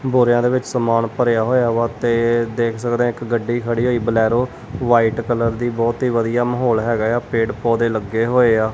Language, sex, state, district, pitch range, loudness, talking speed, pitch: Punjabi, male, Punjab, Kapurthala, 115-120 Hz, -18 LUFS, 215 wpm, 115 Hz